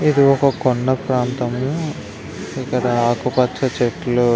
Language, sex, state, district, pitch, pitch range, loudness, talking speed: Telugu, male, Andhra Pradesh, Visakhapatnam, 125 Hz, 120-135 Hz, -19 LUFS, 95 wpm